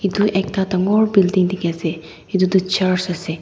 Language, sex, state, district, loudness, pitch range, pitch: Nagamese, female, Nagaland, Dimapur, -18 LUFS, 175-195 Hz, 185 Hz